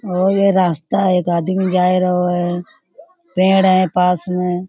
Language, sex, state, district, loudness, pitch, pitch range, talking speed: Hindi, female, Uttar Pradesh, Budaun, -15 LUFS, 180 Hz, 180-190 Hz, 165 wpm